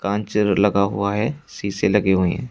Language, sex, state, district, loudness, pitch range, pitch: Hindi, male, Uttar Pradesh, Shamli, -20 LUFS, 100-105 Hz, 100 Hz